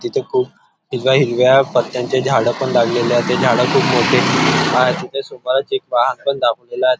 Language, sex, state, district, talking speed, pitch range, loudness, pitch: Marathi, male, Maharashtra, Nagpur, 180 wpm, 125-140 Hz, -16 LUFS, 130 Hz